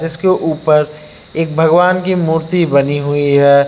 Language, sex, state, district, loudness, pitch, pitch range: Hindi, male, Uttar Pradesh, Lucknow, -13 LUFS, 160 Hz, 145-170 Hz